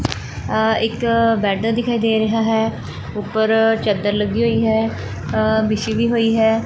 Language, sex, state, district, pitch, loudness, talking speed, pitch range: Punjabi, female, Punjab, Fazilka, 220 Hz, -18 LUFS, 155 wpm, 215-225 Hz